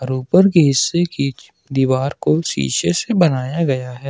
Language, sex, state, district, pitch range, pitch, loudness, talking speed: Hindi, male, Jharkhand, Ranchi, 130-165 Hz, 135 Hz, -17 LUFS, 160 wpm